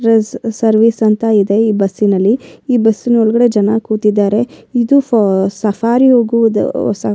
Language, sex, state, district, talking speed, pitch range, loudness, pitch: Kannada, female, Karnataka, Bellary, 150 wpm, 210-235 Hz, -13 LUFS, 225 Hz